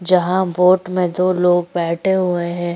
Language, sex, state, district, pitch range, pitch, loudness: Hindi, female, Uttar Pradesh, Jyotiba Phule Nagar, 175-185 Hz, 180 Hz, -17 LUFS